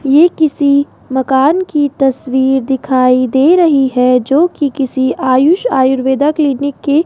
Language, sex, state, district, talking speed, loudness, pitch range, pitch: Hindi, female, Rajasthan, Jaipur, 135 wpm, -12 LUFS, 265-295 Hz, 275 Hz